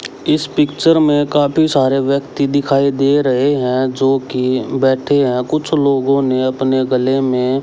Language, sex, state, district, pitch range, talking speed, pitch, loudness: Hindi, male, Haryana, Rohtak, 130-145 Hz, 155 wpm, 135 Hz, -15 LUFS